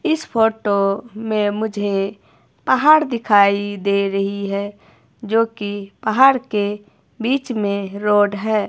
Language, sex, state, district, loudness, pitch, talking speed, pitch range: Hindi, female, Himachal Pradesh, Shimla, -18 LUFS, 205 Hz, 125 wpm, 200-225 Hz